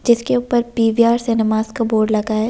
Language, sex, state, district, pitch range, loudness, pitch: Hindi, female, Delhi, New Delhi, 220-235 Hz, -17 LUFS, 230 Hz